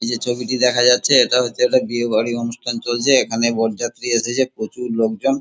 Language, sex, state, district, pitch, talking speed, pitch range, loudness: Bengali, male, West Bengal, Kolkata, 120 Hz, 175 wpm, 115-125 Hz, -18 LUFS